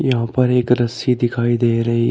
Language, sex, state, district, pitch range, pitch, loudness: Hindi, male, Uttar Pradesh, Shamli, 115-125 Hz, 120 Hz, -17 LUFS